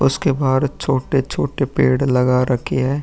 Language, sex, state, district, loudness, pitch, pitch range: Hindi, male, Uttar Pradesh, Muzaffarnagar, -18 LUFS, 135 Hz, 130-140 Hz